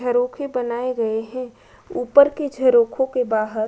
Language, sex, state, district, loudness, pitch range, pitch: Hindi, female, Uttar Pradesh, Budaun, -20 LUFS, 235-265 Hz, 250 Hz